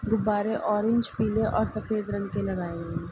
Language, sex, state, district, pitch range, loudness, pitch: Hindi, female, Uttar Pradesh, Ghazipur, 195-220 Hz, -27 LUFS, 215 Hz